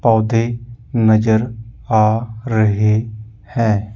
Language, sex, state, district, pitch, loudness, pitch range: Hindi, male, Chandigarh, Chandigarh, 110 Hz, -16 LUFS, 110-115 Hz